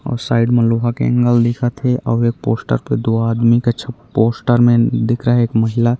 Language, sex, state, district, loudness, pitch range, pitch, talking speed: Chhattisgarhi, male, Chhattisgarh, Raigarh, -15 LUFS, 115-120 Hz, 120 Hz, 230 wpm